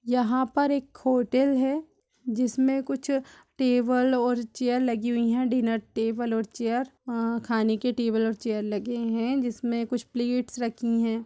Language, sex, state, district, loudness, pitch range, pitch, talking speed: Hindi, female, Bihar, Purnia, -26 LUFS, 230-255 Hz, 245 Hz, 165 wpm